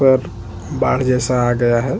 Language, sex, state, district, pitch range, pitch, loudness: Hindi, male, Chhattisgarh, Bastar, 110-130 Hz, 120 Hz, -17 LUFS